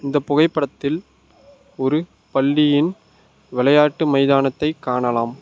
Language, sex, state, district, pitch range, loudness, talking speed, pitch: Tamil, male, Tamil Nadu, Nilgiris, 135-155 Hz, -19 LUFS, 75 wpm, 145 Hz